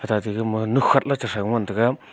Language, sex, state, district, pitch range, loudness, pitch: Wancho, male, Arunachal Pradesh, Longding, 110-130 Hz, -22 LUFS, 115 Hz